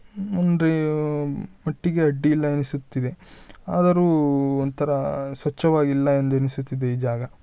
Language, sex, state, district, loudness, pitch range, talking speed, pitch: Kannada, male, Karnataka, Shimoga, -23 LUFS, 140-160 Hz, 75 wpm, 145 Hz